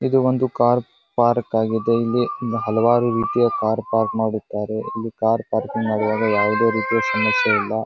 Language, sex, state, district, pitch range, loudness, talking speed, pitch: Kannada, male, Karnataka, Bijapur, 110-120 Hz, -20 LUFS, 145 wpm, 115 Hz